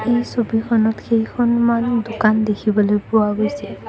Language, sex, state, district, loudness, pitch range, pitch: Assamese, female, Assam, Kamrup Metropolitan, -18 LUFS, 215-235 Hz, 220 Hz